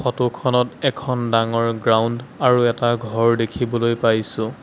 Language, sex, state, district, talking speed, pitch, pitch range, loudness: Assamese, male, Assam, Sonitpur, 130 wpm, 120 Hz, 115-125 Hz, -19 LUFS